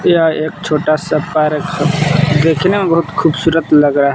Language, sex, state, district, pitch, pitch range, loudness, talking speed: Hindi, male, Jharkhand, Palamu, 155 Hz, 150-165 Hz, -13 LUFS, 190 wpm